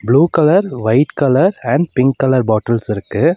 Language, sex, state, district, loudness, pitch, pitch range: Tamil, male, Tamil Nadu, Nilgiris, -14 LUFS, 135 Hz, 115-155 Hz